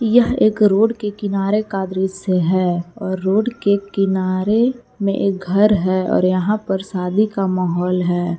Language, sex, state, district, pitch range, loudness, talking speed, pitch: Hindi, female, Jharkhand, Palamu, 185-210 Hz, -18 LUFS, 165 wpm, 195 Hz